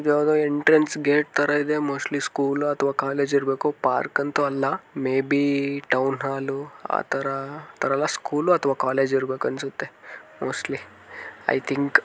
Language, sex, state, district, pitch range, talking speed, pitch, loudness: Kannada, male, Karnataka, Mysore, 135-145 Hz, 140 wpm, 140 Hz, -24 LUFS